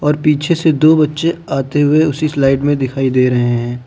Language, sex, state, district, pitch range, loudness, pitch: Hindi, male, Uttar Pradesh, Lucknow, 130-155 Hz, -14 LUFS, 145 Hz